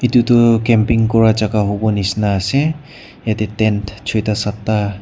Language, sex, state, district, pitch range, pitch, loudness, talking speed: Nagamese, male, Nagaland, Kohima, 105-115 Hz, 110 Hz, -16 LUFS, 145 wpm